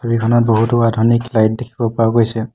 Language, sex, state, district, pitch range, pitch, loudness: Assamese, male, Assam, Hailakandi, 115-120 Hz, 115 Hz, -15 LUFS